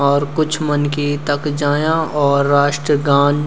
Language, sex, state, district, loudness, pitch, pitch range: Garhwali, male, Uttarakhand, Uttarkashi, -16 LUFS, 145 Hz, 145-150 Hz